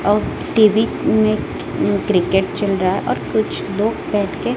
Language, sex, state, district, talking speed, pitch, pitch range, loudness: Hindi, female, Odisha, Malkangiri, 170 wpm, 205 Hz, 190-215 Hz, -18 LUFS